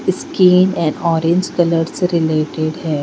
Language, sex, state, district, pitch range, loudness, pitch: Hindi, female, Bihar, Patna, 155-180 Hz, -15 LUFS, 165 Hz